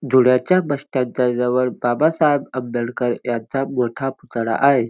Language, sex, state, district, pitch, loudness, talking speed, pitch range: Marathi, male, Maharashtra, Dhule, 130 Hz, -19 LUFS, 135 wpm, 120-140 Hz